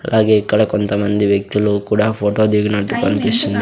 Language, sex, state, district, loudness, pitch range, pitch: Telugu, male, Andhra Pradesh, Sri Satya Sai, -15 LUFS, 105-110 Hz, 105 Hz